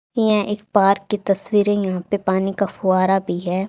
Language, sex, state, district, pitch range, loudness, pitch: Hindi, female, Haryana, Charkhi Dadri, 190-205 Hz, -19 LUFS, 195 Hz